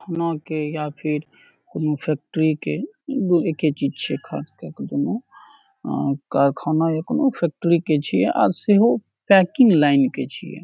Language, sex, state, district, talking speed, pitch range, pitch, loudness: Maithili, male, Bihar, Saharsa, 160 wpm, 150-210 Hz, 160 Hz, -21 LUFS